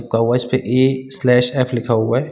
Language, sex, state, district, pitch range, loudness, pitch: Hindi, male, Chhattisgarh, Rajnandgaon, 120-130 Hz, -17 LUFS, 125 Hz